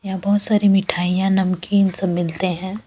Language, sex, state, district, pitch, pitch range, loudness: Hindi, female, Bihar, West Champaran, 190 Hz, 185-200 Hz, -19 LUFS